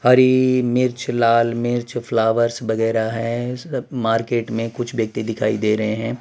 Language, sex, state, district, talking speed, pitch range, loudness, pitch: Hindi, male, Gujarat, Valsad, 155 wpm, 115-120 Hz, -20 LUFS, 115 Hz